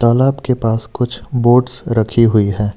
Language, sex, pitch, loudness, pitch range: Hindi, male, 120 Hz, -15 LUFS, 110-125 Hz